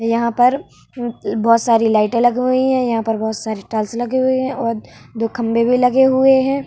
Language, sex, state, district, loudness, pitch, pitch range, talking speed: Hindi, female, Bihar, Vaishali, -16 LUFS, 235 Hz, 225-260 Hz, 225 wpm